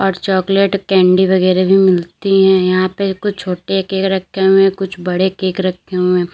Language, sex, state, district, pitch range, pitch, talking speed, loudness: Hindi, female, Uttar Pradesh, Lalitpur, 185-195 Hz, 190 Hz, 190 wpm, -14 LUFS